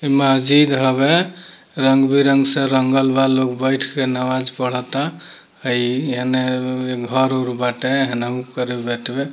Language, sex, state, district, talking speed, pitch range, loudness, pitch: Bhojpuri, male, Bihar, Muzaffarpur, 120 wpm, 125-135 Hz, -18 LUFS, 130 Hz